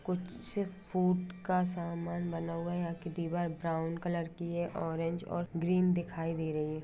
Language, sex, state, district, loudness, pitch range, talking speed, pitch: Hindi, female, Jharkhand, Sahebganj, -34 LUFS, 165-180 Hz, 185 wpm, 170 Hz